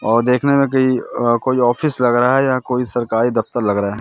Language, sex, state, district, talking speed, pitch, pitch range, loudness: Hindi, male, Madhya Pradesh, Katni, 255 wpm, 125 Hz, 115-130 Hz, -16 LUFS